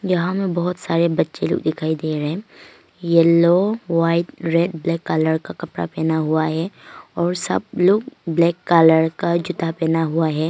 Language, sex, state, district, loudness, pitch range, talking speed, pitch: Hindi, female, Arunachal Pradesh, Longding, -19 LUFS, 160-175 Hz, 170 wpm, 170 Hz